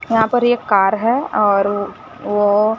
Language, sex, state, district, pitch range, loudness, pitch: Hindi, female, Maharashtra, Gondia, 205-230 Hz, -16 LUFS, 215 Hz